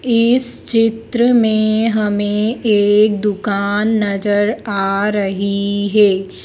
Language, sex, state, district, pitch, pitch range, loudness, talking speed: Hindi, female, Madhya Pradesh, Dhar, 210 Hz, 200-225 Hz, -15 LUFS, 95 wpm